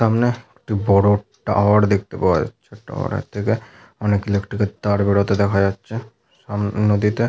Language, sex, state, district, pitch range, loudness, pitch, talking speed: Bengali, male, West Bengal, Paschim Medinipur, 100-115 Hz, -19 LUFS, 105 Hz, 155 wpm